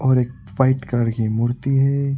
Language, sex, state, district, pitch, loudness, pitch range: Hindi, male, Uttar Pradesh, Budaun, 125 Hz, -20 LUFS, 115-135 Hz